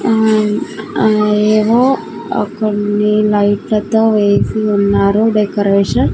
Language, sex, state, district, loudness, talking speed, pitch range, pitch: Telugu, female, Andhra Pradesh, Sri Satya Sai, -13 LUFS, 105 wpm, 205-215 Hz, 210 Hz